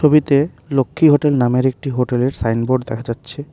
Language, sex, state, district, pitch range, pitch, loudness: Bengali, male, West Bengal, Alipurduar, 125-145 Hz, 130 Hz, -17 LUFS